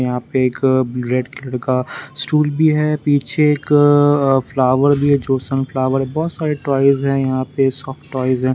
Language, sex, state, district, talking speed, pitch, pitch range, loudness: Hindi, male, Bihar, Patna, 170 wpm, 135 Hz, 130-145 Hz, -16 LUFS